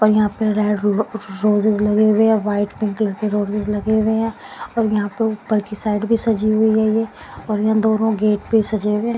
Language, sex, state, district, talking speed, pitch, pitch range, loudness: Hindi, female, Punjab, Pathankot, 220 wpm, 215 Hz, 210-220 Hz, -18 LUFS